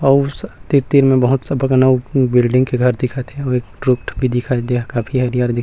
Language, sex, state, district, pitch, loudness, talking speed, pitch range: Chhattisgarhi, male, Chhattisgarh, Rajnandgaon, 130 Hz, -16 LUFS, 170 wpm, 125-135 Hz